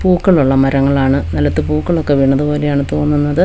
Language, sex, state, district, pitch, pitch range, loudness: Malayalam, female, Kerala, Wayanad, 140 Hz, 135-150 Hz, -14 LUFS